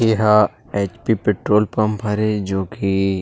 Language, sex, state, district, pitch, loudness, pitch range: Chhattisgarhi, male, Chhattisgarh, Rajnandgaon, 105 Hz, -19 LUFS, 100-110 Hz